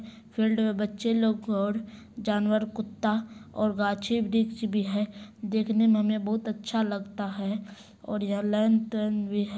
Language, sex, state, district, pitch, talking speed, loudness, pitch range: Hindi, female, Bihar, Supaul, 215 Hz, 140 wpm, -28 LUFS, 205-220 Hz